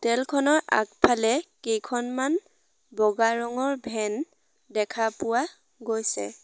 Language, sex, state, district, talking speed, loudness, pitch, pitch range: Assamese, female, Assam, Sonitpur, 75 wpm, -26 LUFS, 235 Hz, 220-270 Hz